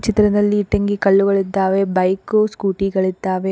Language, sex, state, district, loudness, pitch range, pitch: Kannada, female, Karnataka, Koppal, -17 LUFS, 190-205 Hz, 195 Hz